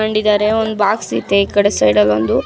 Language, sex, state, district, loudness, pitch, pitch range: Kannada, female, Karnataka, Mysore, -14 LUFS, 205 Hz, 155-215 Hz